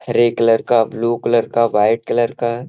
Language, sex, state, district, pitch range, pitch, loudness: Hindi, male, Bihar, Gaya, 115-120 Hz, 115 Hz, -16 LUFS